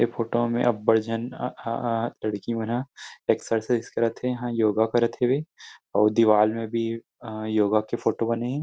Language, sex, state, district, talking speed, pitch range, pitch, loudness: Chhattisgarhi, male, Chhattisgarh, Rajnandgaon, 195 wpm, 110-120 Hz, 115 Hz, -25 LUFS